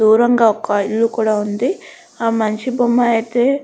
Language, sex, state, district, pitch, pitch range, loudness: Telugu, female, Andhra Pradesh, Guntur, 230 Hz, 215-240 Hz, -16 LUFS